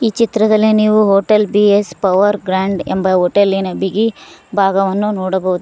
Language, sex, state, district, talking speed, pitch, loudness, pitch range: Kannada, female, Karnataka, Koppal, 140 wpm, 200 Hz, -14 LUFS, 190-215 Hz